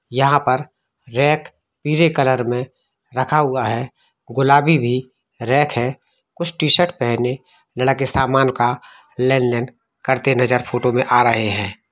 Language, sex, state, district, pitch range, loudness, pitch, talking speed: Hindi, male, Jharkhand, Jamtara, 125-140 Hz, -18 LUFS, 130 Hz, 130 wpm